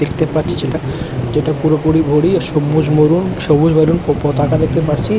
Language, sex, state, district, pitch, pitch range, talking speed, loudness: Bengali, male, West Bengal, Jhargram, 155 Hz, 150-160 Hz, 160 wpm, -14 LUFS